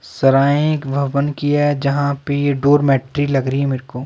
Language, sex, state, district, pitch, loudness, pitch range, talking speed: Hindi, male, Himachal Pradesh, Shimla, 140 Hz, -17 LUFS, 135-145 Hz, 205 wpm